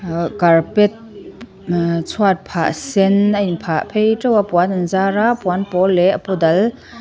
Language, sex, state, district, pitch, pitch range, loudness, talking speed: Mizo, female, Mizoram, Aizawl, 190 Hz, 175-210 Hz, -16 LUFS, 190 wpm